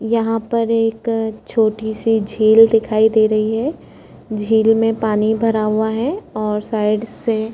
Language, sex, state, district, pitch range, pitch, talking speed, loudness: Hindi, female, Chhattisgarh, Korba, 215-225 Hz, 220 Hz, 150 wpm, -17 LUFS